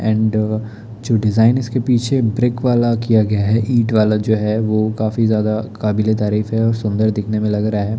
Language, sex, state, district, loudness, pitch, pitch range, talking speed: Hindi, male, Bihar, Darbhanga, -17 LUFS, 110 Hz, 110-115 Hz, 205 wpm